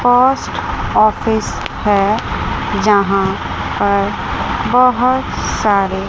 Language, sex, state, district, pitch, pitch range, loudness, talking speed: Hindi, female, Chandigarh, Chandigarh, 205 Hz, 195-240 Hz, -15 LUFS, 70 wpm